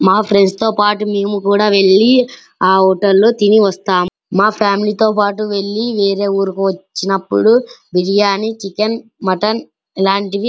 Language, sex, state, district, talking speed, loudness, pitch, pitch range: Telugu, male, Andhra Pradesh, Anantapur, 145 wpm, -14 LUFS, 200 Hz, 195-215 Hz